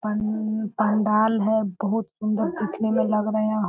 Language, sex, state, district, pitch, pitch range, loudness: Hindi, female, Bihar, Sitamarhi, 215 Hz, 215-220 Hz, -23 LUFS